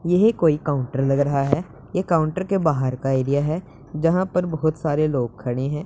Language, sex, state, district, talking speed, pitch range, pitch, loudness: Hindi, male, Punjab, Pathankot, 205 wpm, 135-165 Hz, 150 Hz, -22 LUFS